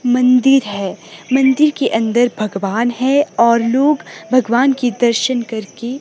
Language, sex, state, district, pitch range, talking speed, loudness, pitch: Hindi, female, Himachal Pradesh, Shimla, 230-265 Hz, 130 wpm, -15 LUFS, 245 Hz